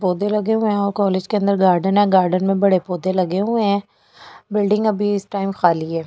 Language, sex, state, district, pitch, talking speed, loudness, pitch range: Hindi, female, Delhi, New Delhi, 200 Hz, 225 wpm, -18 LUFS, 185-205 Hz